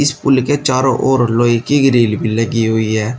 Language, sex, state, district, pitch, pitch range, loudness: Hindi, male, Uttar Pradesh, Shamli, 120 Hz, 115-135 Hz, -14 LUFS